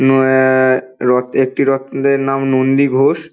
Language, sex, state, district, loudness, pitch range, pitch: Bengali, male, West Bengal, North 24 Parganas, -14 LUFS, 130-135 Hz, 135 Hz